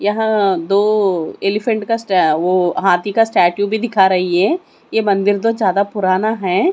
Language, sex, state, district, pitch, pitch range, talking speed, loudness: Hindi, female, Maharashtra, Mumbai Suburban, 200 Hz, 185-220 Hz, 160 wpm, -15 LUFS